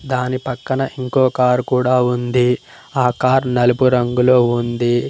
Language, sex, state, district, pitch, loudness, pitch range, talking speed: Telugu, male, Telangana, Mahabubabad, 125 Hz, -16 LUFS, 125-130 Hz, 130 wpm